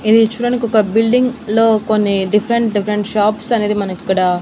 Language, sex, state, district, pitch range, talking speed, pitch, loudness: Telugu, female, Andhra Pradesh, Annamaya, 205-230 Hz, 160 wpm, 215 Hz, -15 LUFS